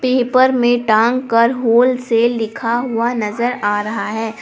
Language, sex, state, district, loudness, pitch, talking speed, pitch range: Hindi, female, Jharkhand, Palamu, -16 LUFS, 235 Hz, 150 wpm, 225-250 Hz